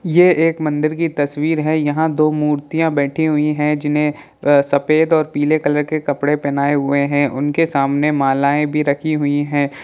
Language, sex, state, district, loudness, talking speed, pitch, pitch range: Hindi, male, Bihar, Jahanabad, -16 LUFS, 185 wpm, 150 Hz, 145-155 Hz